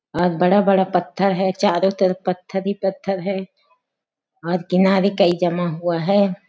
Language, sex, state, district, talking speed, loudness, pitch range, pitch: Hindi, female, Chhattisgarh, Sarguja, 155 wpm, -19 LUFS, 180-195 Hz, 190 Hz